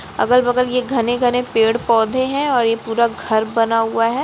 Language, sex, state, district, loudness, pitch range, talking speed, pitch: Hindi, female, Uttar Pradesh, Jalaun, -17 LUFS, 225-250 Hz, 200 wpm, 235 Hz